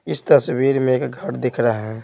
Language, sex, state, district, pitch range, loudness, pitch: Hindi, male, Bihar, Patna, 115-130 Hz, -19 LUFS, 120 Hz